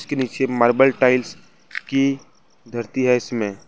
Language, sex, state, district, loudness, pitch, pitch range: Hindi, male, Jharkhand, Ranchi, -19 LUFS, 125 Hz, 120-135 Hz